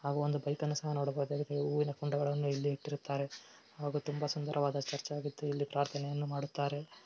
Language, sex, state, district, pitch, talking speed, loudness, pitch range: Kannada, male, Karnataka, Mysore, 145 Hz, 125 wpm, -36 LUFS, 140-145 Hz